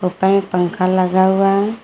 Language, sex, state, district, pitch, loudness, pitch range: Hindi, female, Jharkhand, Garhwa, 190 Hz, -15 LUFS, 185-195 Hz